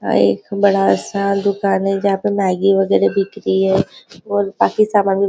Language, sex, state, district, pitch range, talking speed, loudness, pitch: Hindi, female, Maharashtra, Nagpur, 190-200 Hz, 195 wpm, -16 LUFS, 195 Hz